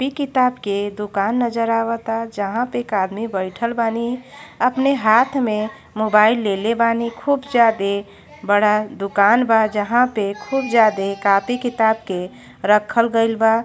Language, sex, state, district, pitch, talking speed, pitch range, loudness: Bhojpuri, female, Uttar Pradesh, Gorakhpur, 225 Hz, 155 wpm, 205-240 Hz, -18 LUFS